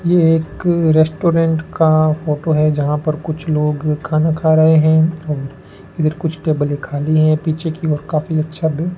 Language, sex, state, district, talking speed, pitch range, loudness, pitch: Hindi, male, Rajasthan, Bikaner, 165 wpm, 155-160 Hz, -16 LUFS, 155 Hz